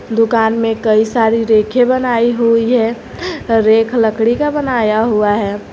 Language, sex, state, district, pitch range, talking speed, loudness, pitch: Hindi, female, Jharkhand, Garhwa, 220-240 Hz, 145 wpm, -13 LUFS, 230 Hz